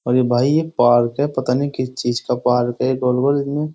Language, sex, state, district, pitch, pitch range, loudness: Hindi, male, Uttar Pradesh, Jyotiba Phule Nagar, 125 Hz, 125-140 Hz, -18 LUFS